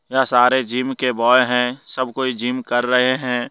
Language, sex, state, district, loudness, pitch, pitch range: Hindi, male, Jharkhand, Deoghar, -18 LUFS, 125 Hz, 125-130 Hz